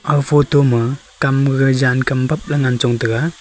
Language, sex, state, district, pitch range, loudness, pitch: Wancho, male, Arunachal Pradesh, Longding, 130-145 Hz, -16 LUFS, 135 Hz